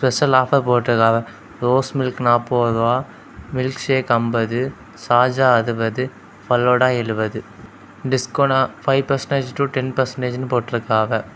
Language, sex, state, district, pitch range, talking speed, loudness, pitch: Tamil, male, Tamil Nadu, Kanyakumari, 115-130 Hz, 115 wpm, -19 LUFS, 125 Hz